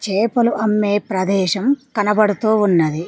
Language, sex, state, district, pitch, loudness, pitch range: Telugu, female, Telangana, Mahabubabad, 210 Hz, -17 LUFS, 195-220 Hz